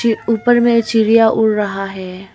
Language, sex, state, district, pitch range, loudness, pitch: Hindi, female, Arunachal Pradesh, Longding, 195-230 Hz, -14 LUFS, 225 Hz